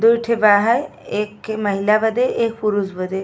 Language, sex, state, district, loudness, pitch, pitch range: Bhojpuri, female, Uttar Pradesh, Ghazipur, -18 LUFS, 215 Hz, 205-230 Hz